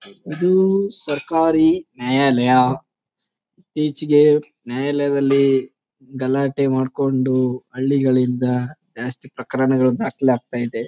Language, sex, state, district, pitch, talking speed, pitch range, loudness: Kannada, male, Karnataka, Chamarajanagar, 135 Hz, 65 wpm, 130-150 Hz, -19 LUFS